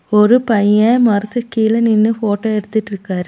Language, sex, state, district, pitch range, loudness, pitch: Tamil, female, Tamil Nadu, Nilgiris, 205-230 Hz, -14 LUFS, 215 Hz